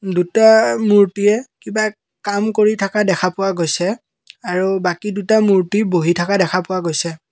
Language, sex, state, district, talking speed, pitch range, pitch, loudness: Assamese, male, Assam, Kamrup Metropolitan, 150 wpm, 180-210 Hz, 195 Hz, -16 LUFS